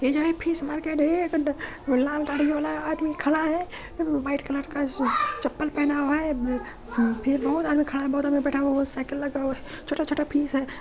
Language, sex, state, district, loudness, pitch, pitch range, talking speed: Hindi, female, Bihar, Saharsa, -26 LUFS, 290 Hz, 275-310 Hz, 235 wpm